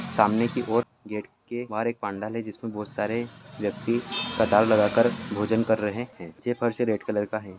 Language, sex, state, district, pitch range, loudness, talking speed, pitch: Hindi, male, Bihar, Sitamarhi, 105-120 Hz, -26 LUFS, 160 wpm, 110 Hz